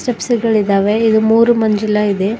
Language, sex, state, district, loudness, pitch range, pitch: Kannada, female, Karnataka, Bidar, -13 LUFS, 210-230 Hz, 220 Hz